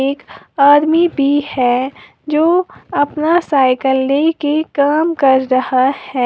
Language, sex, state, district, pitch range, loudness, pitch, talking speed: Hindi, female, Uttar Pradesh, Lalitpur, 265-310 Hz, -14 LUFS, 285 Hz, 115 wpm